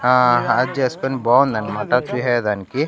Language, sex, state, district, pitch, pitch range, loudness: Telugu, male, Andhra Pradesh, Annamaya, 125 Hz, 120-130 Hz, -18 LUFS